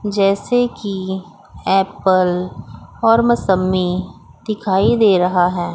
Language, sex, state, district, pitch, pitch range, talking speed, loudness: Hindi, female, Chandigarh, Chandigarh, 190 Hz, 185-210 Hz, 95 wpm, -17 LUFS